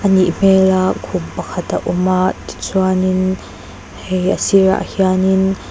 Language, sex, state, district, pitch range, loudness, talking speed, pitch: Mizo, female, Mizoram, Aizawl, 185-190 Hz, -15 LUFS, 135 wpm, 185 Hz